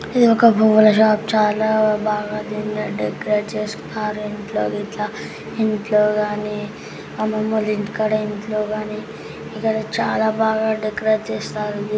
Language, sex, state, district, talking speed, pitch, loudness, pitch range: Telugu, female, Telangana, Karimnagar, 115 wpm, 215 Hz, -19 LUFS, 210-220 Hz